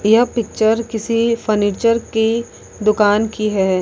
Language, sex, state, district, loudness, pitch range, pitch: Hindi, female, Uttar Pradesh, Lalitpur, -17 LUFS, 210-230 Hz, 220 Hz